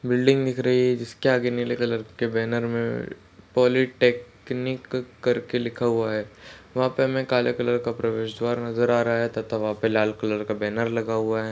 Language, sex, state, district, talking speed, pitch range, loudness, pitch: Hindi, male, Maharashtra, Solapur, 195 wpm, 110-125 Hz, -24 LUFS, 120 Hz